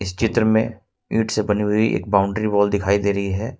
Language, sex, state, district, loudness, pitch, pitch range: Hindi, male, Jharkhand, Ranchi, -20 LUFS, 105 Hz, 100-110 Hz